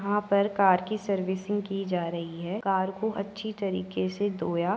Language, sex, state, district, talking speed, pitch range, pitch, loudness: Hindi, female, Uttar Pradesh, Jyotiba Phule Nagar, 200 wpm, 180-205 Hz, 195 Hz, -28 LUFS